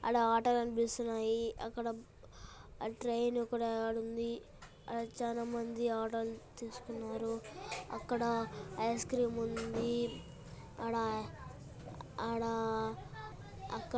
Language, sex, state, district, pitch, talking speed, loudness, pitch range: Telugu, male, Andhra Pradesh, Anantapur, 230 Hz, 80 wpm, -37 LUFS, 225-235 Hz